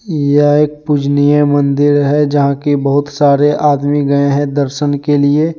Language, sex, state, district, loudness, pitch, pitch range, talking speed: Hindi, male, Jharkhand, Deoghar, -12 LUFS, 145 Hz, 140-145 Hz, 160 wpm